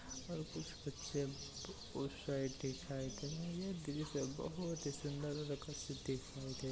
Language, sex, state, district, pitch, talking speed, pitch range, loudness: Hindi, male, Bihar, East Champaran, 145 Hz, 150 wpm, 135-155 Hz, -45 LUFS